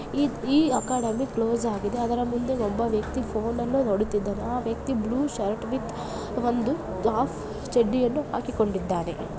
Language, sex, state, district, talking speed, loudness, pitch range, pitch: Kannada, female, Karnataka, Dakshina Kannada, 135 wpm, -26 LUFS, 215-255 Hz, 235 Hz